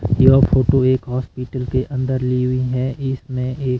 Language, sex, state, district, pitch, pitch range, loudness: Hindi, male, Himachal Pradesh, Shimla, 130 Hz, 125-130 Hz, -18 LUFS